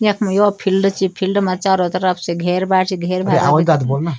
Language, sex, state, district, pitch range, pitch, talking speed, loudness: Garhwali, male, Uttarakhand, Tehri Garhwal, 175-195 Hz, 185 Hz, 215 wpm, -16 LUFS